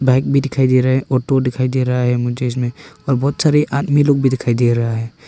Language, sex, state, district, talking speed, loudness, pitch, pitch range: Hindi, male, Arunachal Pradesh, Longding, 250 wpm, -16 LUFS, 130 Hz, 125-140 Hz